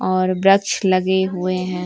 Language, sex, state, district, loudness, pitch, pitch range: Hindi, female, Chhattisgarh, Bilaspur, -18 LUFS, 185 Hz, 185-190 Hz